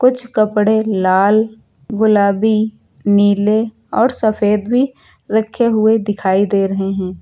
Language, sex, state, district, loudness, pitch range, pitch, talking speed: Hindi, female, Uttar Pradesh, Lucknow, -15 LUFS, 200-220 Hz, 215 Hz, 115 wpm